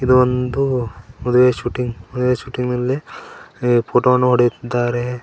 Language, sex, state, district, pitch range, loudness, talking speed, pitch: Kannada, male, Karnataka, Koppal, 120-125 Hz, -18 LUFS, 125 wpm, 125 Hz